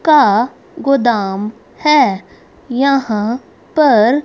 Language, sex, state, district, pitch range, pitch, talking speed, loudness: Hindi, female, Haryana, Rohtak, 215-280 Hz, 250 Hz, 70 wpm, -14 LUFS